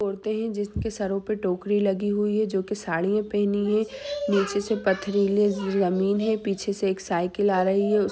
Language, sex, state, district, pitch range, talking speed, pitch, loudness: Hindi, female, Jharkhand, Sahebganj, 195-210 Hz, 190 wpm, 205 Hz, -25 LUFS